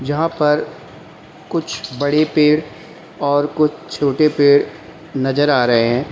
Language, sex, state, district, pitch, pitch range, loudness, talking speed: Hindi, male, Uttar Pradesh, Lalitpur, 145 Hz, 140-155 Hz, -16 LUFS, 125 wpm